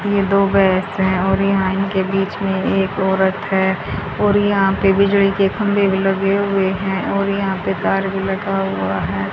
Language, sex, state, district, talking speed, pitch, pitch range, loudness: Hindi, female, Haryana, Rohtak, 195 wpm, 195 Hz, 190-195 Hz, -17 LUFS